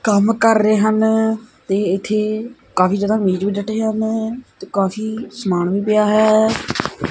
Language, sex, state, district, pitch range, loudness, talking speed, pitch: Punjabi, male, Punjab, Kapurthala, 200-220 Hz, -17 LUFS, 150 wpm, 215 Hz